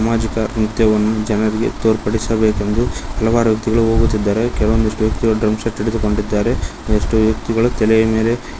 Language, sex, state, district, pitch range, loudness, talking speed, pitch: Kannada, male, Karnataka, Koppal, 110-115 Hz, -17 LUFS, 120 wpm, 110 Hz